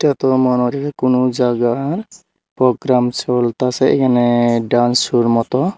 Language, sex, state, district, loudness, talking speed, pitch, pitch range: Bengali, male, Tripura, Unakoti, -15 LUFS, 115 wpm, 125 Hz, 120-135 Hz